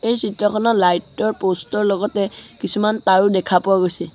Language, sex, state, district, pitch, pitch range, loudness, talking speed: Assamese, male, Assam, Sonitpur, 200 Hz, 185-210 Hz, -18 LUFS, 160 wpm